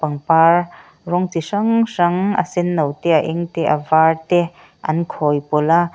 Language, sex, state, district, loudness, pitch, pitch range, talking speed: Mizo, female, Mizoram, Aizawl, -17 LUFS, 170 Hz, 160-175 Hz, 180 wpm